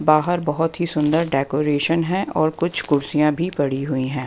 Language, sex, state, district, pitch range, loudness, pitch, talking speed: Hindi, female, Bihar, West Champaran, 145-165 Hz, -20 LUFS, 150 Hz, 170 wpm